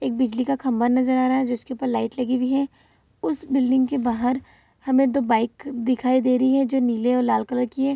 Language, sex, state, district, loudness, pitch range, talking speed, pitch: Hindi, female, Bihar, Saharsa, -22 LUFS, 250-265 Hz, 250 wpm, 255 Hz